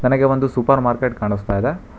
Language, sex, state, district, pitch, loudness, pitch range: Kannada, male, Karnataka, Bangalore, 125 Hz, -18 LUFS, 115-135 Hz